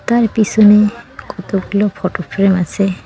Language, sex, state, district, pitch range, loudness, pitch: Bengali, female, West Bengal, Cooch Behar, 190-215 Hz, -14 LUFS, 200 Hz